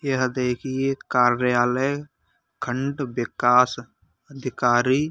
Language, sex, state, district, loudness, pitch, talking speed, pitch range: Hindi, male, Uttar Pradesh, Hamirpur, -22 LUFS, 125 Hz, 80 wpm, 120-135 Hz